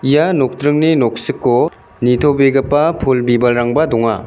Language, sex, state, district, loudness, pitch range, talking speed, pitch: Garo, male, Meghalaya, West Garo Hills, -14 LUFS, 120-145 Hz, 100 wpm, 130 Hz